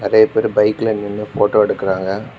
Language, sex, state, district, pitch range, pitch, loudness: Tamil, male, Tamil Nadu, Kanyakumari, 100-115 Hz, 105 Hz, -16 LUFS